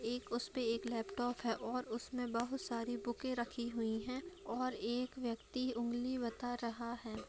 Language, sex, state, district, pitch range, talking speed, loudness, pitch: Hindi, female, Bihar, Jahanabad, 230-250 Hz, 165 wpm, -41 LUFS, 240 Hz